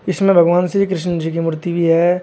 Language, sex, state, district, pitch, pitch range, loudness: Hindi, male, Uttar Pradesh, Shamli, 175 Hz, 165-185 Hz, -16 LUFS